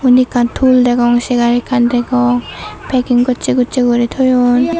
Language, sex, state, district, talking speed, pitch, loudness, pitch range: Chakma, female, Tripura, Dhalai, 150 wpm, 245 Hz, -13 LUFS, 245-255 Hz